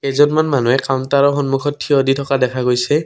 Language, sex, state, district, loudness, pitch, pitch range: Assamese, male, Assam, Kamrup Metropolitan, -16 LUFS, 140 Hz, 130-145 Hz